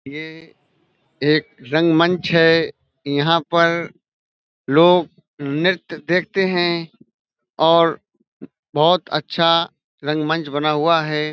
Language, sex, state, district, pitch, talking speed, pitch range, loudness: Hindi, male, Uttar Pradesh, Budaun, 165 Hz, 90 wpm, 150-170 Hz, -18 LUFS